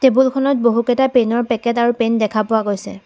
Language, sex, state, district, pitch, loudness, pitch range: Assamese, female, Assam, Sonitpur, 235 Hz, -16 LUFS, 220-255 Hz